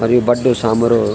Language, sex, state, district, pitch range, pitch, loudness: Garhwali, male, Uttarakhand, Tehri Garhwal, 115-120 Hz, 115 Hz, -14 LUFS